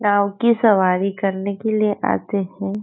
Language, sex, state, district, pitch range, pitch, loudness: Hindi, female, Maharashtra, Nagpur, 195-210 Hz, 200 Hz, -19 LUFS